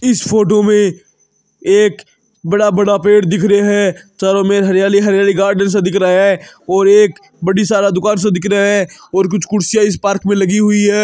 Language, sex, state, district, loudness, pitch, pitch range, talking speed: Marwari, male, Rajasthan, Nagaur, -12 LUFS, 200 Hz, 195-210 Hz, 200 wpm